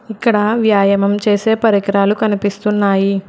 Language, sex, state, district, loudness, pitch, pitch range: Telugu, female, Telangana, Hyderabad, -14 LUFS, 205 Hz, 200-220 Hz